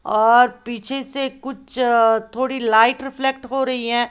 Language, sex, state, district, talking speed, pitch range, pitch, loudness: Hindi, female, Uttar Pradesh, Lalitpur, 145 wpm, 235-265 Hz, 250 Hz, -18 LUFS